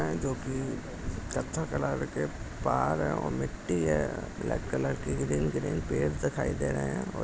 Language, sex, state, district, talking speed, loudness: Hindi, male, Maharashtra, Dhule, 175 wpm, -32 LUFS